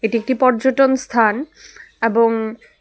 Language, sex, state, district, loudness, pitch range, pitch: Bengali, female, Tripura, West Tripura, -17 LUFS, 225-265 Hz, 230 Hz